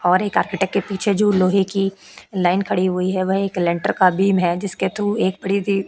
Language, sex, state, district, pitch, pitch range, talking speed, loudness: Hindi, female, Uttar Pradesh, Etah, 195 Hz, 185-195 Hz, 235 wpm, -19 LUFS